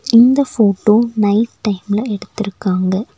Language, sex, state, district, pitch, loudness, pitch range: Tamil, female, Tamil Nadu, Nilgiris, 210 Hz, -15 LUFS, 200-230 Hz